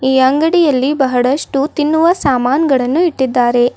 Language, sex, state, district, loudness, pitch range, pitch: Kannada, female, Karnataka, Bidar, -13 LUFS, 260-305 Hz, 270 Hz